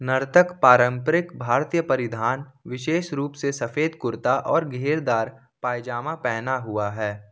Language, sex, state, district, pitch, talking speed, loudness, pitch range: Hindi, male, Jharkhand, Ranchi, 130 Hz, 125 wpm, -23 LUFS, 120-150 Hz